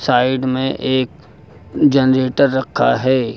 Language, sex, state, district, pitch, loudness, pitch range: Hindi, male, Uttar Pradesh, Lucknow, 130 Hz, -16 LUFS, 130-135 Hz